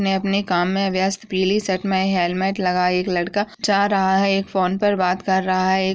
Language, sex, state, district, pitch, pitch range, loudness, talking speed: Hindi, female, Uttar Pradesh, Ghazipur, 190 Hz, 185-195 Hz, -20 LUFS, 230 wpm